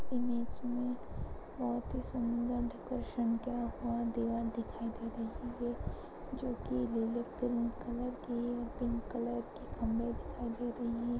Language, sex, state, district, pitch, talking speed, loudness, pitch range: Hindi, female, Uttar Pradesh, Jalaun, 235 Hz, 150 wpm, -38 LUFS, 230-245 Hz